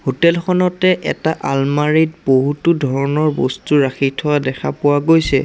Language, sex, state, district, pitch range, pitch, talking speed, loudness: Assamese, male, Assam, Sonitpur, 135-160 Hz, 145 Hz, 120 wpm, -16 LUFS